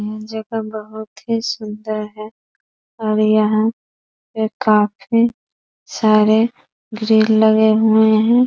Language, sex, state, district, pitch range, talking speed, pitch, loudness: Hindi, female, Bihar, East Champaran, 215-225 Hz, 100 wpm, 220 Hz, -16 LUFS